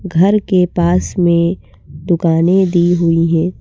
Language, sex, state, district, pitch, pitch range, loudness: Hindi, female, Madhya Pradesh, Bhopal, 175 Hz, 170-185 Hz, -13 LUFS